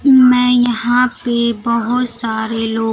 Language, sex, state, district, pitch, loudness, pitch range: Hindi, female, Bihar, Kaimur, 240 Hz, -14 LUFS, 225-250 Hz